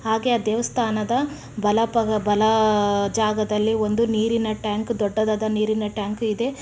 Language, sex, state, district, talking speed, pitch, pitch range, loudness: Kannada, female, Karnataka, Chamarajanagar, 135 wpm, 215 Hz, 215-230 Hz, -22 LUFS